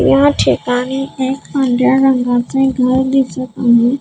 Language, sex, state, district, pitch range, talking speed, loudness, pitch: Marathi, female, Maharashtra, Gondia, 240-265 Hz, 120 wpm, -14 LUFS, 255 Hz